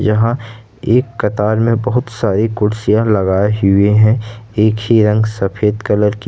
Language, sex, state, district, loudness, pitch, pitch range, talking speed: Hindi, male, Jharkhand, Ranchi, -14 LUFS, 110 Hz, 105-115 Hz, 155 wpm